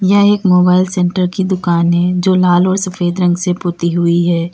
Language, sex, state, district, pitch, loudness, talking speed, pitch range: Hindi, female, Uttar Pradesh, Lalitpur, 180 Hz, -13 LUFS, 210 wpm, 175-185 Hz